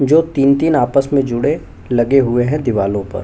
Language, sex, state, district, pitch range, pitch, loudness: Hindi, male, Chhattisgarh, Bastar, 120-140 Hz, 135 Hz, -15 LUFS